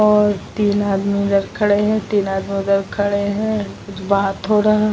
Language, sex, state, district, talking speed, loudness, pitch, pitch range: Hindi, female, Bihar, Vaishali, 185 wpm, -18 LUFS, 205 Hz, 195-210 Hz